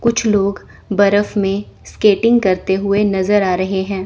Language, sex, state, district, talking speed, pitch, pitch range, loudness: Hindi, female, Chandigarh, Chandigarh, 160 wpm, 200 Hz, 190-210 Hz, -15 LUFS